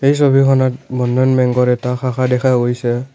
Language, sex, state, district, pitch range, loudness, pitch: Assamese, male, Assam, Kamrup Metropolitan, 125-130 Hz, -15 LUFS, 125 Hz